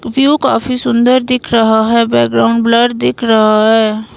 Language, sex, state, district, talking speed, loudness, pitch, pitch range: Hindi, female, Himachal Pradesh, Shimla, 160 wpm, -11 LUFS, 230 Hz, 220-250 Hz